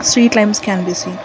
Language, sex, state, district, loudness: English, female, Karnataka, Bangalore, -14 LUFS